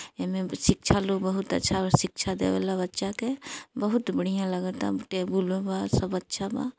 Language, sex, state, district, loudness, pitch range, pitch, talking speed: Bhojpuri, female, Bihar, East Champaran, -28 LUFS, 165-195 Hz, 190 Hz, 160 wpm